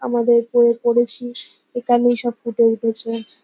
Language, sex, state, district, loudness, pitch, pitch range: Bengali, female, West Bengal, North 24 Parganas, -18 LUFS, 240 Hz, 230-240 Hz